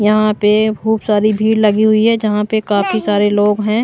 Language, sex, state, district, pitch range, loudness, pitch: Hindi, female, Punjab, Pathankot, 210-220 Hz, -14 LUFS, 215 Hz